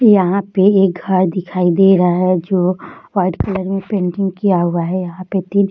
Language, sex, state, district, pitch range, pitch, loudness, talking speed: Hindi, female, Bihar, Jahanabad, 180-195 Hz, 185 Hz, -15 LUFS, 210 wpm